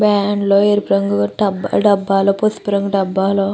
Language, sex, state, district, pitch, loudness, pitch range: Telugu, female, Andhra Pradesh, Chittoor, 200 Hz, -16 LUFS, 195-205 Hz